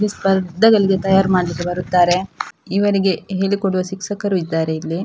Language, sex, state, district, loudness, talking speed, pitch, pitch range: Kannada, female, Karnataka, Dakshina Kannada, -17 LUFS, 130 wpm, 190 Hz, 180-195 Hz